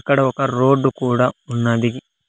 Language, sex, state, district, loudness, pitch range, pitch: Telugu, male, Andhra Pradesh, Sri Satya Sai, -18 LUFS, 120-135 Hz, 130 Hz